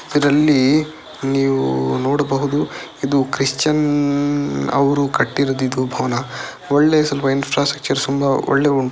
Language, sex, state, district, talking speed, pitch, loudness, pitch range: Kannada, male, Karnataka, Dakshina Kannada, 100 wpm, 140 Hz, -17 LUFS, 135-145 Hz